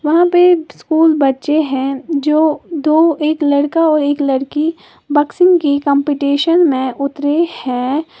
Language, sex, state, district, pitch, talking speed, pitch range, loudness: Hindi, female, Uttar Pradesh, Lalitpur, 300 Hz, 130 wpm, 280-320 Hz, -14 LUFS